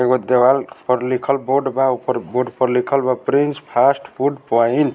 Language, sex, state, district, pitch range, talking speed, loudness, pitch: Bhojpuri, male, Bihar, Saran, 125-140 Hz, 205 wpm, -18 LUFS, 130 Hz